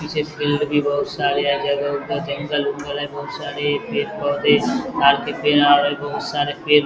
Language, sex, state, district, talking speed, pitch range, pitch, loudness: Hindi, male, Bihar, Vaishali, 140 wpm, 145-150 Hz, 145 Hz, -20 LUFS